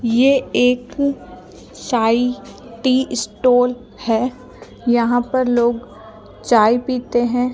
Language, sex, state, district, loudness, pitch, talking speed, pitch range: Hindi, female, Rajasthan, Jaipur, -17 LUFS, 245 Hz, 95 wpm, 235-255 Hz